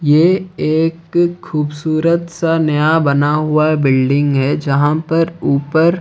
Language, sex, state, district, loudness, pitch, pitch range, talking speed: Hindi, male, Odisha, Khordha, -15 LUFS, 155 Hz, 145-165 Hz, 120 wpm